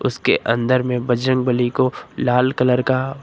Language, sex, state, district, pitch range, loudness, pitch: Hindi, male, Uttar Pradesh, Lucknow, 125-130 Hz, -18 LUFS, 125 Hz